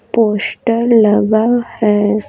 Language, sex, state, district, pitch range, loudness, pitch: Hindi, female, Bihar, Patna, 210-235 Hz, -13 LUFS, 220 Hz